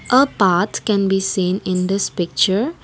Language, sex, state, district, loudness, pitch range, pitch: English, female, Assam, Kamrup Metropolitan, -18 LUFS, 185-210 Hz, 195 Hz